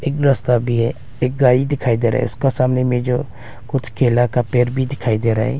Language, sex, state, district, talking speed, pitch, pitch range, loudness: Hindi, male, Arunachal Pradesh, Longding, 245 wpm, 125 Hz, 120-130 Hz, -18 LUFS